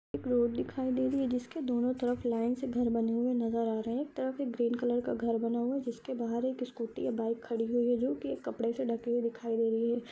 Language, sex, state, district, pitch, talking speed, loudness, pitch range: Hindi, female, Andhra Pradesh, Anantapur, 240 Hz, 280 wpm, -33 LUFS, 230-250 Hz